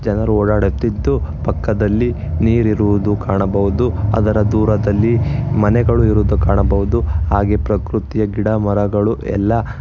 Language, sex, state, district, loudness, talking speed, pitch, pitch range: Kannada, male, Karnataka, Bangalore, -16 LUFS, 90 wpm, 105 Hz, 100-110 Hz